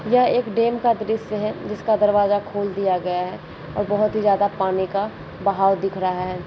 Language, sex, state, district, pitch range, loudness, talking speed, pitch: Kumaoni, female, Uttarakhand, Uttarkashi, 190-215 Hz, -21 LUFS, 205 wpm, 205 Hz